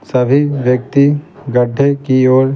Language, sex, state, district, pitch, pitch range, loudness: Hindi, male, Bihar, Patna, 135 Hz, 125-140 Hz, -13 LUFS